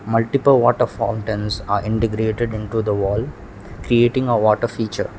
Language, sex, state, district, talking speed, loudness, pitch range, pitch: English, male, Sikkim, Gangtok, 140 wpm, -19 LUFS, 105-120 Hz, 115 Hz